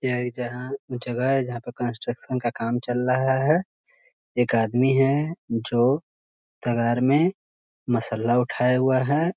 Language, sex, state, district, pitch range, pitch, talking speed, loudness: Hindi, male, Bihar, Muzaffarpur, 120-135 Hz, 125 Hz, 145 wpm, -24 LUFS